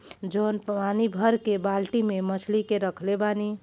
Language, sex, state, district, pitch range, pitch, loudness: Bhojpuri, female, Uttar Pradesh, Gorakhpur, 195-215 Hz, 210 Hz, -26 LUFS